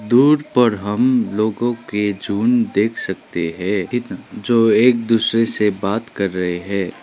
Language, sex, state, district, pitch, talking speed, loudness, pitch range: Hindi, male, Sikkim, Gangtok, 110 Hz, 155 wpm, -18 LUFS, 100-120 Hz